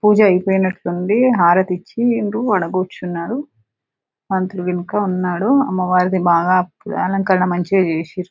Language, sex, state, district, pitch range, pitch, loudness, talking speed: Telugu, female, Telangana, Nalgonda, 180-205 Hz, 185 Hz, -17 LUFS, 95 wpm